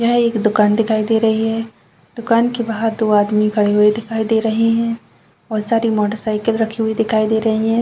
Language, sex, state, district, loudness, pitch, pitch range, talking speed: Hindi, female, Chhattisgarh, Bastar, -17 LUFS, 225 Hz, 215-230 Hz, 215 wpm